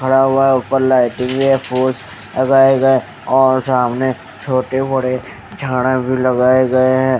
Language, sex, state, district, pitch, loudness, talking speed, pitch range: Hindi, male, Haryana, Charkhi Dadri, 130 Hz, -14 LUFS, 150 wpm, 125-135 Hz